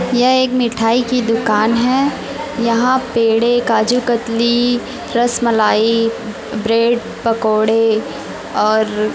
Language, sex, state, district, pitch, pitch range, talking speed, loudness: Hindi, female, Chhattisgarh, Raipur, 235 Hz, 225-245 Hz, 85 wpm, -15 LUFS